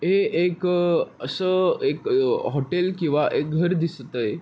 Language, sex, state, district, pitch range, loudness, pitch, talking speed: Marathi, male, Maharashtra, Pune, 160-185 Hz, -23 LUFS, 175 Hz, 135 wpm